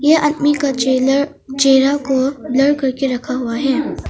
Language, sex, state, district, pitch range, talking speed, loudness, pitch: Hindi, female, Arunachal Pradesh, Longding, 260-290 Hz, 160 wpm, -16 LUFS, 275 Hz